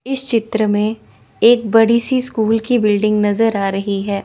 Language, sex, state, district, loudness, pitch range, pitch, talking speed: Hindi, female, Chandigarh, Chandigarh, -16 LUFS, 205-235 Hz, 220 Hz, 185 wpm